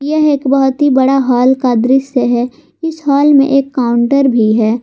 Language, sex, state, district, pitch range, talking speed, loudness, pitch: Hindi, female, Jharkhand, Garhwa, 245-280 Hz, 200 wpm, -11 LUFS, 270 Hz